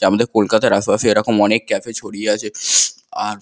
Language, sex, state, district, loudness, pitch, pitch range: Bengali, male, West Bengal, Kolkata, -16 LUFS, 105 Hz, 105-110 Hz